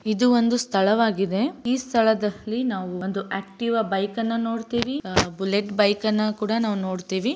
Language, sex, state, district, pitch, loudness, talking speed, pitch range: Kannada, female, Karnataka, Raichur, 215 Hz, -23 LUFS, 120 wpm, 195-235 Hz